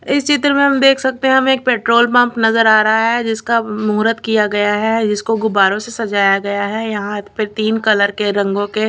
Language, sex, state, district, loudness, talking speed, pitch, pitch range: Hindi, female, Chhattisgarh, Raipur, -14 LUFS, 220 wpm, 220 Hz, 205-235 Hz